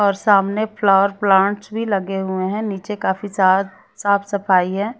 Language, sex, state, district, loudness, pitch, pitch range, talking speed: Hindi, female, Chhattisgarh, Raipur, -18 LUFS, 200 Hz, 190-205 Hz, 170 wpm